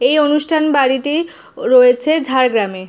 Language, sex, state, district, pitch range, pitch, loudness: Bengali, female, West Bengal, Jhargram, 265-330 Hz, 300 Hz, -14 LUFS